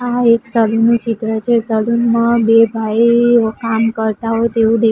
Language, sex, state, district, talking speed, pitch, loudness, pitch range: Gujarati, female, Gujarat, Gandhinagar, 185 wpm, 230 Hz, -14 LUFS, 225-235 Hz